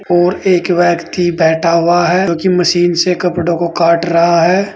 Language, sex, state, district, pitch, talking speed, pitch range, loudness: Hindi, male, Uttar Pradesh, Saharanpur, 175 Hz, 190 wpm, 170-180 Hz, -12 LUFS